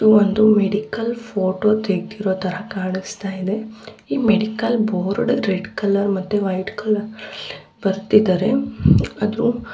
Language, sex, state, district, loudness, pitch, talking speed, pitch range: Kannada, female, Karnataka, Bellary, -19 LUFS, 210 Hz, 115 wpm, 195-215 Hz